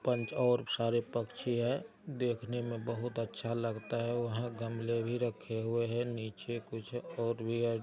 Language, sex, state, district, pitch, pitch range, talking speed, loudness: Maithili, male, Bihar, Araria, 115 Hz, 115-120 Hz, 170 wpm, -36 LUFS